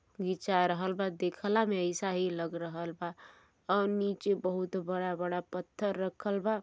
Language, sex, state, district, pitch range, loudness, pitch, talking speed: Bhojpuri, male, Uttar Pradesh, Gorakhpur, 180-200 Hz, -33 LUFS, 185 Hz, 165 wpm